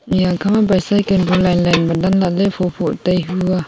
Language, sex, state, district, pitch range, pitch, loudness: Wancho, female, Arunachal Pradesh, Longding, 180-195 Hz, 185 Hz, -16 LUFS